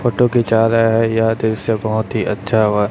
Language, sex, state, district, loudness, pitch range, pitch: Hindi, male, Chhattisgarh, Raipur, -16 LUFS, 110-115 Hz, 115 Hz